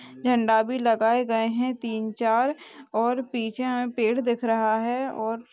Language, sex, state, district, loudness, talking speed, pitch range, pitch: Hindi, female, West Bengal, Dakshin Dinajpur, -25 LUFS, 150 wpm, 225-250 Hz, 235 Hz